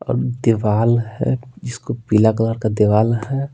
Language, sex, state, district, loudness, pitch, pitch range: Hindi, male, Bihar, Patna, -18 LUFS, 115 Hz, 110-125 Hz